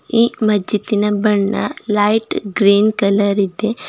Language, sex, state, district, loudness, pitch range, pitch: Kannada, female, Karnataka, Bidar, -16 LUFS, 200-220 Hz, 210 Hz